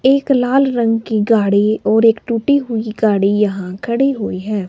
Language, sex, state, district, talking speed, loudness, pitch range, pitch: Hindi, male, Himachal Pradesh, Shimla, 180 wpm, -15 LUFS, 210-250 Hz, 225 Hz